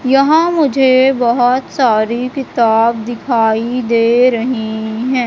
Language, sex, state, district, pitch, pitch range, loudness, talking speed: Hindi, female, Madhya Pradesh, Katni, 245 Hz, 230-260 Hz, -13 LUFS, 100 wpm